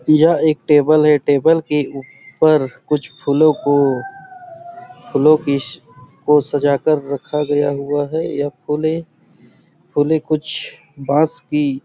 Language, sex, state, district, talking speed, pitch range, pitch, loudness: Hindi, male, Chhattisgarh, Sarguja, 125 wpm, 145-155 Hz, 150 Hz, -16 LUFS